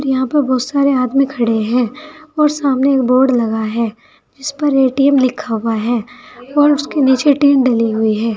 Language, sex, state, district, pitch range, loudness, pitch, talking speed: Hindi, female, Uttar Pradesh, Saharanpur, 235-285 Hz, -14 LUFS, 260 Hz, 195 wpm